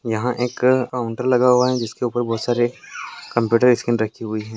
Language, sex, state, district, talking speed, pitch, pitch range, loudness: Hindi, male, Bihar, Jamui, 195 wpm, 120 Hz, 115-125 Hz, -19 LUFS